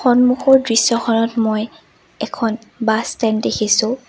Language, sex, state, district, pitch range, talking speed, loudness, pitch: Assamese, female, Assam, Sonitpur, 220-245 Hz, 105 wpm, -16 LUFS, 230 Hz